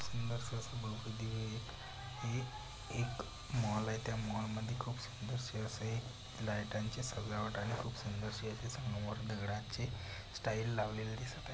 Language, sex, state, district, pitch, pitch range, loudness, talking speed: Marathi, male, Maharashtra, Pune, 110 Hz, 110-120 Hz, -42 LUFS, 135 wpm